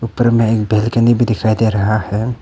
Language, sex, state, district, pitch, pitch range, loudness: Hindi, male, Arunachal Pradesh, Papum Pare, 110 Hz, 110-115 Hz, -14 LUFS